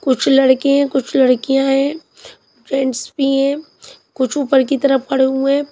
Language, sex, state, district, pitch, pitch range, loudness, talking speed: Hindi, female, Punjab, Kapurthala, 270 Hz, 265-280 Hz, -15 LUFS, 160 wpm